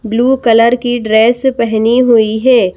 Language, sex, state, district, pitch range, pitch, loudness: Hindi, female, Madhya Pradesh, Bhopal, 220-245 Hz, 235 Hz, -10 LUFS